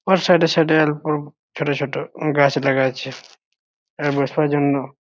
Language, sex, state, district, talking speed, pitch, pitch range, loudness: Bengali, male, West Bengal, Jhargram, 180 wpm, 145 Hz, 140-155 Hz, -19 LUFS